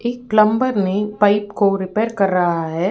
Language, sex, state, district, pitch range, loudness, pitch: Hindi, female, Uttar Pradesh, Ghazipur, 190-215 Hz, -17 LUFS, 205 Hz